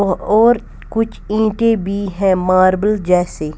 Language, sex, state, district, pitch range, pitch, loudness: Hindi, female, Punjab, Kapurthala, 185-220 Hz, 200 Hz, -15 LUFS